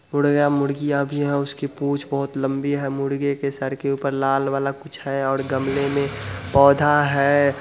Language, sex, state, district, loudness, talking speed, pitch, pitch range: Hindi, male, Bihar, Muzaffarpur, -21 LUFS, 180 wpm, 140 Hz, 135-140 Hz